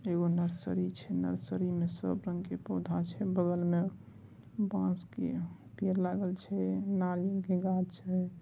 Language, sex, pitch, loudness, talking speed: Angika, male, 175 Hz, -34 LUFS, 170 wpm